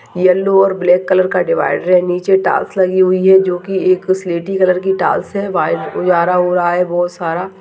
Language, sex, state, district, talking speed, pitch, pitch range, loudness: Hindi, female, Uttarakhand, Tehri Garhwal, 215 wpm, 185 Hz, 180-190 Hz, -14 LUFS